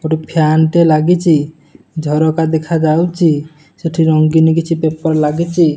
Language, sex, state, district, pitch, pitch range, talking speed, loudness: Odia, male, Odisha, Nuapada, 160 Hz, 155-165 Hz, 115 wpm, -13 LUFS